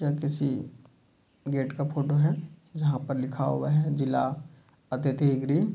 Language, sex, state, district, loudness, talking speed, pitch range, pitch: Hindi, male, Bihar, Kishanganj, -28 LUFS, 145 wpm, 135-150 Hz, 145 Hz